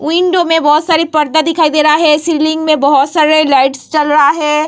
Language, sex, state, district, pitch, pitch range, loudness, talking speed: Hindi, female, Bihar, Vaishali, 310 Hz, 300-320 Hz, -10 LUFS, 220 wpm